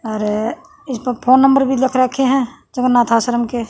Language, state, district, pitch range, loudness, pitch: Haryanvi, Haryana, Rohtak, 235-265 Hz, -16 LUFS, 250 Hz